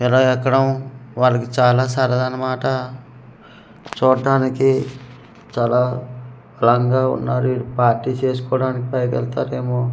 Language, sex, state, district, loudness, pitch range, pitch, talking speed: Telugu, male, Andhra Pradesh, Manyam, -18 LUFS, 125-130 Hz, 125 Hz, 85 wpm